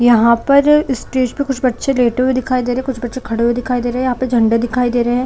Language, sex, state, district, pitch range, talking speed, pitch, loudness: Hindi, female, Chhattisgarh, Korba, 240-260 Hz, 295 wpm, 250 Hz, -15 LUFS